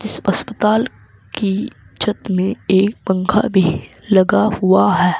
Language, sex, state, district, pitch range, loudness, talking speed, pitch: Hindi, female, Uttar Pradesh, Saharanpur, 190-215 Hz, -17 LUFS, 125 wpm, 195 Hz